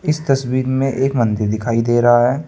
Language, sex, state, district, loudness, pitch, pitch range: Hindi, male, Uttar Pradesh, Saharanpur, -16 LUFS, 130 Hz, 120-135 Hz